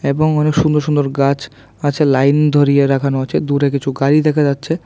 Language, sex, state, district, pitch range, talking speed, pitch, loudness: Bengali, male, Tripura, West Tripura, 140-150 Hz, 185 wpm, 140 Hz, -15 LUFS